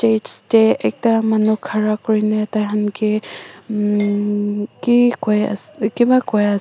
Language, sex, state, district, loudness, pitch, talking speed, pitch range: Nagamese, female, Nagaland, Dimapur, -17 LUFS, 210 Hz, 120 wpm, 205-220 Hz